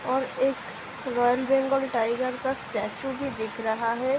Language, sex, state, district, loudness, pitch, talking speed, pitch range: Hindi, female, Uttar Pradesh, Budaun, -27 LUFS, 260 Hz, 170 wpm, 235-270 Hz